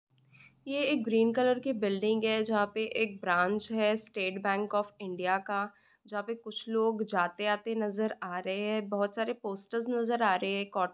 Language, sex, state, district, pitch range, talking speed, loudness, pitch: Hindi, female, Bihar, Jamui, 195-225 Hz, 190 wpm, -31 LUFS, 210 Hz